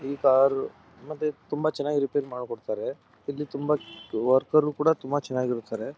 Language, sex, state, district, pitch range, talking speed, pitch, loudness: Kannada, male, Karnataka, Dharwad, 130-150 Hz, 140 wpm, 140 Hz, -26 LUFS